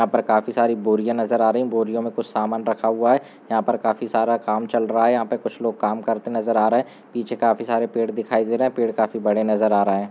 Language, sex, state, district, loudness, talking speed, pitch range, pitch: Hindi, male, Andhra Pradesh, Chittoor, -21 LUFS, 285 wpm, 110-120 Hz, 115 Hz